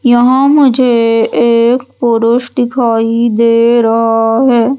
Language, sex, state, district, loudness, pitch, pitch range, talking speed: Hindi, female, Madhya Pradesh, Umaria, -10 LUFS, 235 Hz, 230-250 Hz, 100 wpm